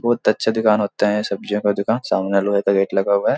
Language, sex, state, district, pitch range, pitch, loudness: Hindi, male, Bihar, Supaul, 100-105 Hz, 105 Hz, -19 LUFS